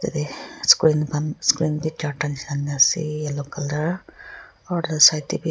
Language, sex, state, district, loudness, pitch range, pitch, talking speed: Nagamese, female, Nagaland, Kohima, -21 LUFS, 145-160 Hz, 150 Hz, 175 wpm